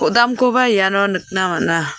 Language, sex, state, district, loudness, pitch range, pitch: Garo, female, Meghalaya, South Garo Hills, -16 LUFS, 185-240 Hz, 200 Hz